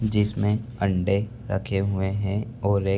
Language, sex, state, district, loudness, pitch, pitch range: Hindi, male, Uttar Pradesh, Budaun, -25 LUFS, 100 Hz, 100-110 Hz